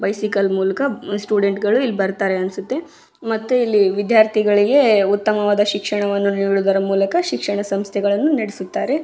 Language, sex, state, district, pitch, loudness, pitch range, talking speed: Kannada, female, Karnataka, Raichur, 205 Hz, -18 LUFS, 195-225 Hz, 115 wpm